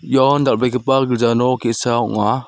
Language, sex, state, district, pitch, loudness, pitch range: Garo, male, Meghalaya, South Garo Hills, 125 Hz, -16 LUFS, 120-135 Hz